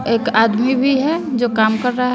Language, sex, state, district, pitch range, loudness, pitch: Hindi, female, Bihar, West Champaran, 230-260 Hz, -16 LUFS, 245 Hz